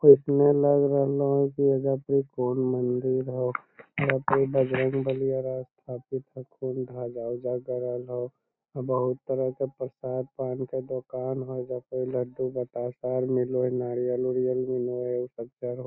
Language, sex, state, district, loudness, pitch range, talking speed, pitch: Magahi, male, Bihar, Lakhisarai, -28 LUFS, 125-135 Hz, 170 wpm, 130 Hz